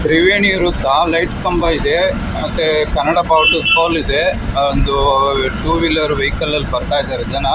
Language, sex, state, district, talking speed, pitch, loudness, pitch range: Kannada, male, Karnataka, Mysore, 120 wpm, 160 Hz, -13 LUFS, 140-170 Hz